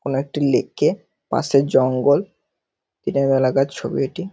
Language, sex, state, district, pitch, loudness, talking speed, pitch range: Bengali, male, West Bengal, North 24 Parganas, 140 Hz, -19 LUFS, 140 wpm, 135-140 Hz